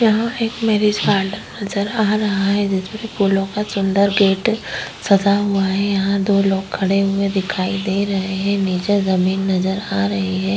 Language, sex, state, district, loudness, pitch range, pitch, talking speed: Hindi, female, Bihar, Vaishali, -18 LUFS, 190-205 Hz, 195 Hz, 180 wpm